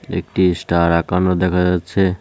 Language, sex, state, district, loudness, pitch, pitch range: Bengali, male, West Bengal, Cooch Behar, -17 LUFS, 90 Hz, 85-90 Hz